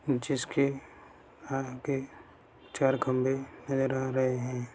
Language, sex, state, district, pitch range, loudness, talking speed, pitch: Hindi, male, Bihar, Sitamarhi, 130-135 Hz, -31 LUFS, 100 wpm, 135 Hz